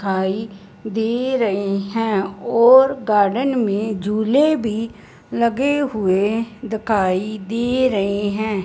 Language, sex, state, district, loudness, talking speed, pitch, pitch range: Hindi, male, Punjab, Fazilka, -19 LUFS, 105 wpm, 220 Hz, 200-235 Hz